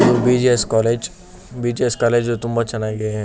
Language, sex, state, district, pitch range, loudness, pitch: Kannada, male, Karnataka, Shimoga, 110-120 Hz, -18 LUFS, 115 Hz